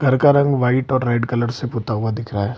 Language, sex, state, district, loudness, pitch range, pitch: Hindi, male, Bihar, Lakhisarai, -18 LUFS, 115-130 Hz, 120 Hz